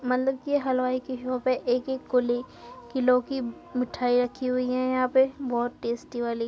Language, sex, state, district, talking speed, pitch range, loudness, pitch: Hindi, female, Uttar Pradesh, Muzaffarnagar, 185 wpm, 245-260 Hz, -27 LUFS, 255 Hz